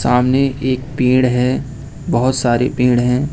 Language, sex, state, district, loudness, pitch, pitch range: Hindi, male, Uttar Pradesh, Lucknow, -16 LUFS, 130 Hz, 125-135 Hz